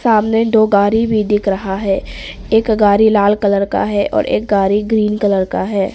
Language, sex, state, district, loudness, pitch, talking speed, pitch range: Hindi, female, Arunachal Pradesh, Papum Pare, -14 LUFS, 205 Hz, 200 wpm, 200-220 Hz